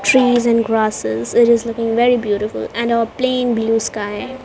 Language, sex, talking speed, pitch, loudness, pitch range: English, female, 190 wpm, 230 Hz, -16 LUFS, 215-240 Hz